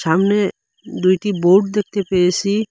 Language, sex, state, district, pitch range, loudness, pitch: Bengali, male, Assam, Hailakandi, 185-205 Hz, -17 LUFS, 195 Hz